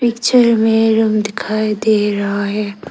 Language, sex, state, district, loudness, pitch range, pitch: Hindi, female, Arunachal Pradesh, Lower Dibang Valley, -15 LUFS, 205-225 Hz, 215 Hz